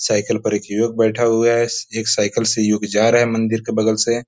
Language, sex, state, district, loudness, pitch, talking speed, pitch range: Hindi, male, Bihar, East Champaran, -17 LUFS, 115 Hz, 250 wpm, 110-115 Hz